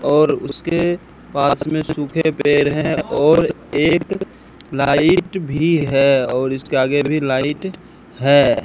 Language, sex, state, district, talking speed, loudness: Hindi, male, Rajasthan, Bikaner, 125 wpm, -17 LUFS